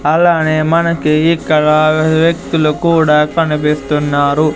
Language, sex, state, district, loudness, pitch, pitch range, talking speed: Telugu, male, Andhra Pradesh, Sri Satya Sai, -12 LUFS, 155 Hz, 150-165 Hz, 80 wpm